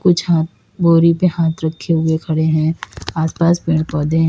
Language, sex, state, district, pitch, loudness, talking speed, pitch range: Hindi, female, Uttar Pradesh, Lalitpur, 160 Hz, -16 LUFS, 195 wpm, 160-170 Hz